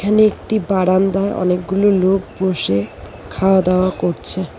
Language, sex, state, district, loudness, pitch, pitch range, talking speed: Bengali, female, West Bengal, Cooch Behar, -16 LUFS, 185 Hz, 175-195 Hz, 120 wpm